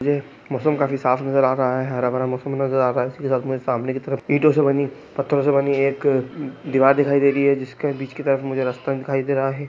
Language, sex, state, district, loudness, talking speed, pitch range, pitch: Hindi, male, Chhattisgarh, Kabirdham, -20 LUFS, 240 wpm, 130-140 Hz, 135 Hz